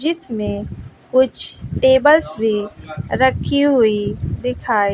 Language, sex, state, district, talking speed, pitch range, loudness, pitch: Hindi, female, Bihar, West Champaran, 85 wpm, 210-265 Hz, -17 LUFS, 250 Hz